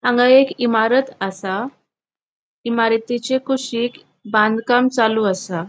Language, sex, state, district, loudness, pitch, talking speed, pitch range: Konkani, female, Goa, North and South Goa, -18 LUFS, 235 Hz, 95 wpm, 215-255 Hz